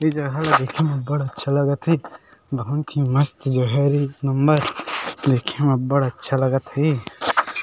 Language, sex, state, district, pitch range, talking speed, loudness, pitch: Chhattisgarhi, male, Chhattisgarh, Sarguja, 135-150 Hz, 180 wpm, -21 LUFS, 140 Hz